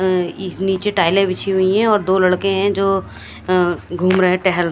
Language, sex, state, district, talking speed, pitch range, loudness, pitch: Hindi, female, Punjab, Kapurthala, 205 wpm, 180-195 Hz, -17 LUFS, 185 Hz